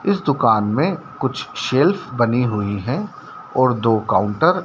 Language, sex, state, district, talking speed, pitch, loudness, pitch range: Hindi, male, Madhya Pradesh, Dhar, 155 wpm, 120 Hz, -19 LUFS, 105-130 Hz